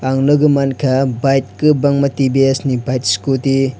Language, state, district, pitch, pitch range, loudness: Kokborok, Tripura, West Tripura, 135 Hz, 130-140 Hz, -15 LUFS